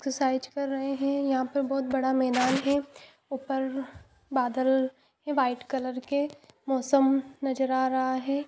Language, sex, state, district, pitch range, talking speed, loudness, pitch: Hindi, female, Jharkhand, Jamtara, 260-275 Hz, 150 wpm, -28 LUFS, 270 Hz